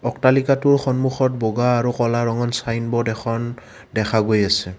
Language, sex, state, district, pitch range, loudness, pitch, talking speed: Assamese, male, Assam, Kamrup Metropolitan, 110-130 Hz, -20 LUFS, 120 Hz, 140 wpm